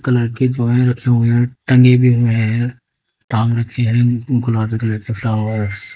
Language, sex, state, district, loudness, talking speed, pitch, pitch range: Hindi, female, Haryana, Jhajjar, -15 LUFS, 180 wpm, 120 Hz, 115-125 Hz